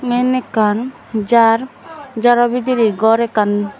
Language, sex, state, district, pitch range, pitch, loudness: Chakma, female, Tripura, Dhalai, 220-250 Hz, 235 Hz, -15 LUFS